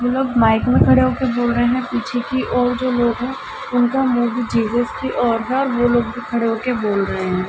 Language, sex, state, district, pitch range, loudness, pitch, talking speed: Hindi, female, Uttar Pradesh, Ghazipur, 230-255 Hz, -18 LUFS, 240 Hz, 250 wpm